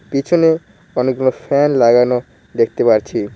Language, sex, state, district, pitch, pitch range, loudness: Bengali, male, West Bengal, Cooch Behar, 130 Hz, 125-145 Hz, -15 LUFS